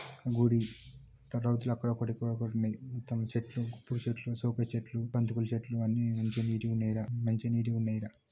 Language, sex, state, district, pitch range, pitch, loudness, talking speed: Telugu, male, Telangana, Nalgonda, 115-120 Hz, 115 Hz, -34 LUFS, 65 wpm